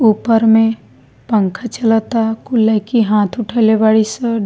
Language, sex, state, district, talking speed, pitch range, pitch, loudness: Bhojpuri, female, Bihar, East Champaran, 135 wpm, 220-230 Hz, 225 Hz, -14 LUFS